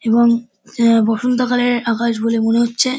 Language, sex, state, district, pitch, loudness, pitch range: Bengali, male, West Bengal, Dakshin Dinajpur, 235 Hz, -16 LUFS, 230-245 Hz